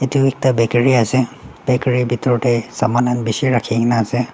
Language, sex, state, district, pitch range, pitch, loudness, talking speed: Nagamese, male, Nagaland, Dimapur, 120-130 Hz, 125 Hz, -17 LUFS, 180 wpm